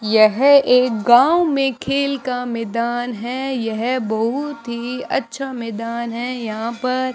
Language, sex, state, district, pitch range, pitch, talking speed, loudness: Hindi, male, Rajasthan, Bikaner, 230-265 Hz, 245 Hz, 135 wpm, -19 LUFS